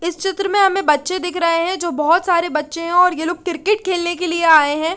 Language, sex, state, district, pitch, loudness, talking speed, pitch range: Hindi, female, Chandigarh, Chandigarh, 345 Hz, -17 LUFS, 275 wpm, 330-365 Hz